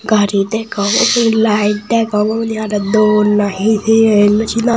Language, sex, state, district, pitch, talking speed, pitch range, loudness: Chakma, male, Tripura, Unakoti, 215 Hz, 150 wpm, 210-225 Hz, -13 LUFS